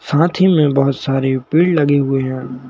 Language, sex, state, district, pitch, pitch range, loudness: Hindi, male, Madhya Pradesh, Bhopal, 140 Hz, 135-160 Hz, -15 LUFS